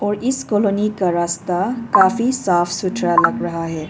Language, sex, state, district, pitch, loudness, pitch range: Hindi, female, Arunachal Pradesh, Papum Pare, 190 Hz, -18 LUFS, 175-215 Hz